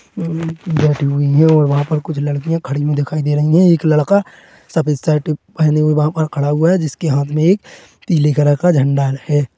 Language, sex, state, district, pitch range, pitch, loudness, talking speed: Hindi, male, Chhattisgarh, Korba, 145-165 Hz, 155 Hz, -15 LUFS, 220 wpm